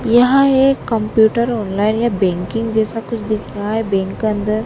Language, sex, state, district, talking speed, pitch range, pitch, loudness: Hindi, female, Madhya Pradesh, Dhar, 180 wpm, 210-235 Hz, 220 Hz, -16 LUFS